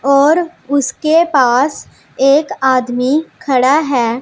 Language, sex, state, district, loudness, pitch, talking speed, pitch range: Hindi, female, Punjab, Pathankot, -13 LUFS, 275 Hz, 100 wpm, 255-305 Hz